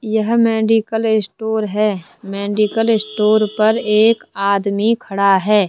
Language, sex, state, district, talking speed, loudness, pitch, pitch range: Hindi, male, Rajasthan, Jaipur, 115 wpm, -16 LUFS, 215 Hz, 200-220 Hz